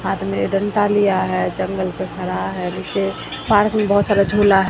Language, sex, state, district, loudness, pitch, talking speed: Hindi, female, Bihar, Katihar, -19 LUFS, 195 Hz, 205 wpm